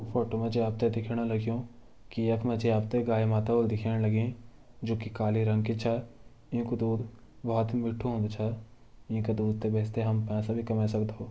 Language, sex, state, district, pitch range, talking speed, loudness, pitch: Garhwali, male, Uttarakhand, Tehri Garhwal, 110-115 Hz, 215 wpm, -30 LUFS, 115 Hz